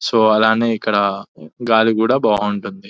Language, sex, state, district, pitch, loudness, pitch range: Telugu, male, Telangana, Nalgonda, 110 Hz, -16 LUFS, 100-110 Hz